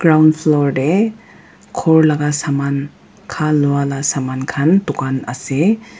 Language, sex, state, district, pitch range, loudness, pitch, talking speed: Nagamese, female, Nagaland, Dimapur, 140-160 Hz, -16 LUFS, 150 Hz, 120 wpm